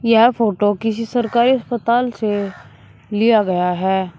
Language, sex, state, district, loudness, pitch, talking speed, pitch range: Hindi, male, Uttar Pradesh, Shamli, -17 LUFS, 220 Hz, 130 wpm, 190-235 Hz